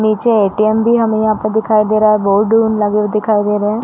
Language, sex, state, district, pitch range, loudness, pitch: Hindi, female, Uttar Pradesh, Varanasi, 210-220 Hz, -13 LUFS, 215 Hz